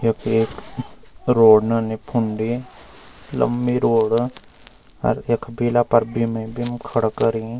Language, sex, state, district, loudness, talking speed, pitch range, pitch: Garhwali, male, Uttarakhand, Uttarkashi, -20 LUFS, 125 wpm, 110-120 Hz, 115 Hz